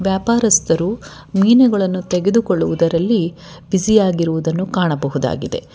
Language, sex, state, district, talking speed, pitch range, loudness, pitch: Kannada, female, Karnataka, Bangalore, 65 wpm, 165-205 Hz, -16 LUFS, 180 Hz